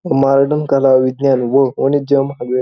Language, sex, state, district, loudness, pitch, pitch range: Marathi, male, Maharashtra, Pune, -14 LUFS, 135 Hz, 130-140 Hz